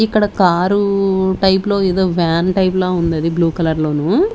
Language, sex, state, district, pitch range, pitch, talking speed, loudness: Telugu, female, Andhra Pradesh, Sri Satya Sai, 170-195 Hz, 185 Hz, 180 wpm, -15 LUFS